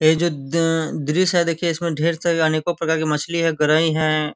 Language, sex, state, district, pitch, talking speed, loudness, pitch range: Hindi, male, Bihar, Gopalganj, 160 Hz, 220 wpm, -20 LUFS, 155-170 Hz